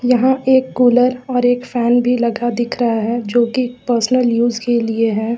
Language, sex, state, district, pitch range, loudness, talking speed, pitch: Hindi, female, Jharkhand, Ranchi, 235-250 Hz, -16 LUFS, 200 wpm, 245 Hz